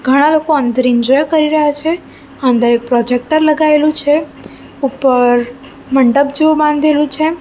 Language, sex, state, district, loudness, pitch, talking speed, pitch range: Gujarati, female, Gujarat, Gandhinagar, -12 LUFS, 290 Hz, 130 wpm, 255-305 Hz